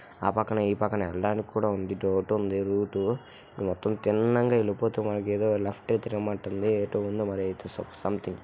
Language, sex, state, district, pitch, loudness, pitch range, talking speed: Telugu, male, Andhra Pradesh, Visakhapatnam, 105 Hz, -28 LUFS, 100-110 Hz, 130 wpm